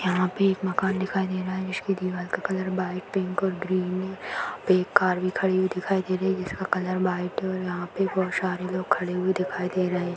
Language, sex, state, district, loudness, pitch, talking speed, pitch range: Hindi, female, Bihar, Madhepura, -26 LUFS, 185 Hz, 260 wpm, 185-190 Hz